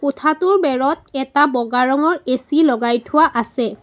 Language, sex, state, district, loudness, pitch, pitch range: Assamese, female, Assam, Sonitpur, -17 LUFS, 275 Hz, 250-310 Hz